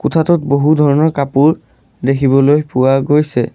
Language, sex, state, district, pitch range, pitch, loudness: Assamese, male, Assam, Sonitpur, 135-155 Hz, 145 Hz, -13 LUFS